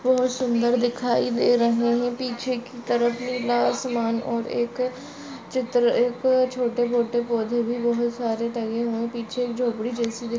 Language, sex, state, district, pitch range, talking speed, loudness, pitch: Hindi, female, Maharashtra, Solapur, 235-250 Hz, 155 wpm, -24 LUFS, 240 Hz